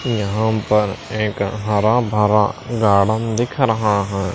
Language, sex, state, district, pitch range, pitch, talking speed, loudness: Hindi, male, Maharashtra, Washim, 100-110 Hz, 105 Hz, 125 wpm, -18 LUFS